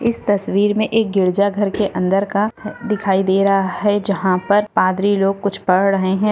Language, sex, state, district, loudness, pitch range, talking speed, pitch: Hindi, female, Goa, North and South Goa, -16 LUFS, 195-210 Hz, 200 wpm, 200 Hz